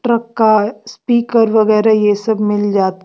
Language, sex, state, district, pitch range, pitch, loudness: Hindi, female, Bihar, West Champaran, 205-230 Hz, 215 Hz, -13 LUFS